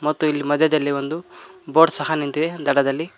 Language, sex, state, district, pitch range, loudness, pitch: Kannada, male, Karnataka, Koppal, 145-160 Hz, -20 LUFS, 150 Hz